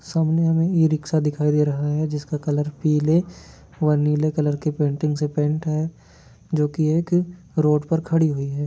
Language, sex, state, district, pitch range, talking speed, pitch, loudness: Hindi, male, Jharkhand, Jamtara, 150-160 Hz, 180 wpm, 155 Hz, -21 LUFS